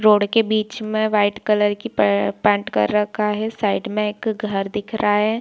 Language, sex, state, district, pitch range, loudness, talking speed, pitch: Hindi, female, Bihar, Purnia, 205-215 Hz, -20 LUFS, 180 wpm, 210 Hz